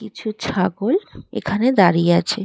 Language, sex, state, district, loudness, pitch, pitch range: Bengali, female, West Bengal, Dakshin Dinajpur, -19 LUFS, 205 Hz, 185-225 Hz